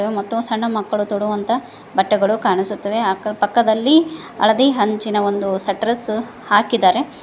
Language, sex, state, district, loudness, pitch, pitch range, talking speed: Kannada, female, Karnataka, Koppal, -18 LUFS, 215 Hz, 205-235 Hz, 110 wpm